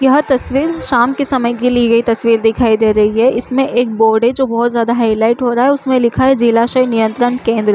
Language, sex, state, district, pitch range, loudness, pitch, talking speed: Chhattisgarhi, female, Chhattisgarh, Jashpur, 230-260 Hz, -13 LUFS, 240 Hz, 240 wpm